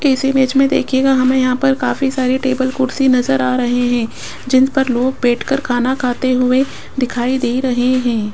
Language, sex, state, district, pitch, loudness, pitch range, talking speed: Hindi, female, Rajasthan, Jaipur, 260 Hz, -15 LUFS, 245-265 Hz, 185 wpm